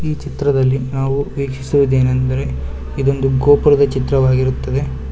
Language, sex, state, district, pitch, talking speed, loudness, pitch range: Kannada, male, Karnataka, Bangalore, 135 Hz, 80 wpm, -16 LUFS, 130-140 Hz